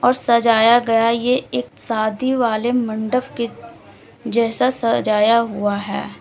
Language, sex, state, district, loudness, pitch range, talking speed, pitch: Hindi, female, Uttar Pradesh, Lalitpur, -18 LUFS, 220-245 Hz, 125 wpm, 230 Hz